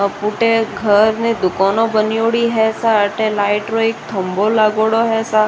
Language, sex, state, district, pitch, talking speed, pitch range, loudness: Rajasthani, female, Rajasthan, Nagaur, 220 Hz, 165 wpm, 205-225 Hz, -15 LUFS